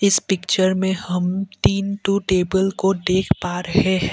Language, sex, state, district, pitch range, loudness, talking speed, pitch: Hindi, male, Assam, Kamrup Metropolitan, 180-195 Hz, -20 LUFS, 175 wpm, 190 Hz